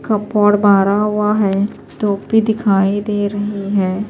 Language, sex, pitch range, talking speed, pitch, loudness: Urdu, female, 200-210 Hz, 130 wpm, 205 Hz, -16 LUFS